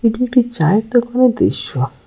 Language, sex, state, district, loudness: Bengali, male, West Bengal, Cooch Behar, -15 LUFS